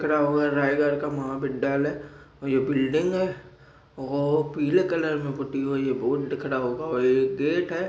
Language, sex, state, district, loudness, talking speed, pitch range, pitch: Hindi, male, Chhattisgarh, Raigarh, -25 LUFS, 175 wpm, 135-150 Hz, 145 Hz